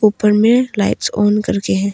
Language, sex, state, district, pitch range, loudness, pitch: Hindi, female, Arunachal Pradesh, Longding, 175-215 Hz, -15 LUFS, 210 Hz